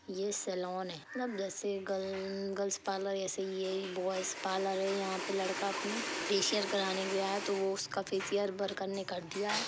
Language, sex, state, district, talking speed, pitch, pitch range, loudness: Hindi, female, Chhattisgarh, Bilaspur, 180 wpm, 195 Hz, 190-200 Hz, -35 LUFS